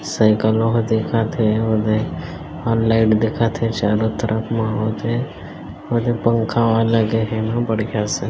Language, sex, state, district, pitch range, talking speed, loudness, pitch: Hindi, male, Chhattisgarh, Bilaspur, 110-115 Hz, 165 wpm, -19 LUFS, 110 Hz